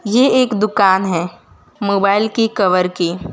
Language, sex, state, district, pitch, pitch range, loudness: Hindi, female, Gujarat, Valsad, 200 Hz, 180-220 Hz, -15 LUFS